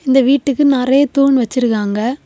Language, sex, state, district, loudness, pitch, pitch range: Tamil, female, Tamil Nadu, Kanyakumari, -14 LUFS, 265 Hz, 245-280 Hz